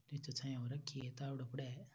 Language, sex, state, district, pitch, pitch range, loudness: Rajasthani, male, Rajasthan, Churu, 135 Hz, 130-140 Hz, -46 LUFS